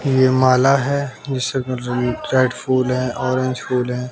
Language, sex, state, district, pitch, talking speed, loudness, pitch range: Hindi, male, Haryana, Jhajjar, 130 Hz, 145 wpm, -18 LUFS, 125-130 Hz